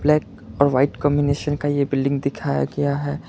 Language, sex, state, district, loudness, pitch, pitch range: Hindi, male, Karnataka, Bangalore, -21 LUFS, 140 Hz, 140-145 Hz